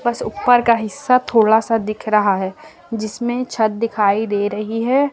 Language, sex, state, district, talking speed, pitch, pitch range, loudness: Hindi, female, Uttar Pradesh, Lucknow, 175 wpm, 225 Hz, 215-240 Hz, -17 LUFS